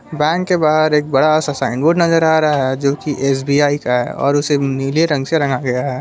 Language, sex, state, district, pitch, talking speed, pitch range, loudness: Hindi, male, Jharkhand, Palamu, 145 Hz, 240 wpm, 135-155 Hz, -15 LUFS